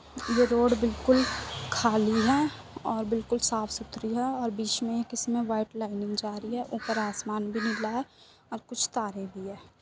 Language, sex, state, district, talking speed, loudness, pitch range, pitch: Hindi, female, Uttar Pradesh, Muzaffarnagar, 175 wpm, -29 LUFS, 215-240 Hz, 230 Hz